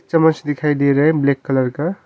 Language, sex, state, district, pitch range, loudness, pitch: Hindi, male, Arunachal Pradesh, Longding, 140-160 Hz, -17 LUFS, 145 Hz